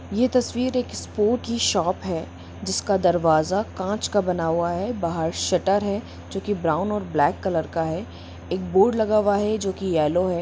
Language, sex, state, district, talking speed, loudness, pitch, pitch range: Hindi, female, Jharkhand, Sahebganj, 195 wpm, -23 LUFS, 185 Hz, 165-210 Hz